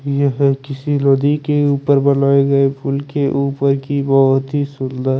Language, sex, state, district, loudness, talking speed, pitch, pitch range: Hindi, male, Chandigarh, Chandigarh, -16 LUFS, 175 wpm, 140 Hz, 135-140 Hz